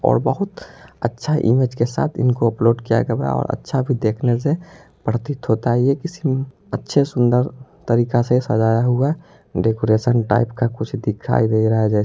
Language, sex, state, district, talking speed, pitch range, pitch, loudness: Hindi, male, Bihar, Muzaffarpur, 175 wpm, 115-135 Hz, 120 Hz, -19 LUFS